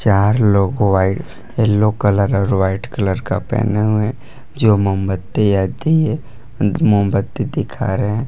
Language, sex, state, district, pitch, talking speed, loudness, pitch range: Hindi, male, Jharkhand, Palamu, 105 Hz, 130 wpm, -17 LUFS, 100-120 Hz